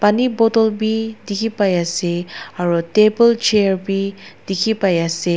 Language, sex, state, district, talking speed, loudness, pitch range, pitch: Nagamese, female, Nagaland, Dimapur, 100 wpm, -17 LUFS, 175-220 Hz, 200 Hz